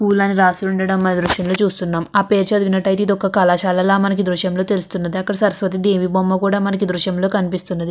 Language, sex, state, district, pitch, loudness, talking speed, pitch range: Telugu, female, Andhra Pradesh, Krishna, 190 Hz, -17 LUFS, 165 wpm, 185-200 Hz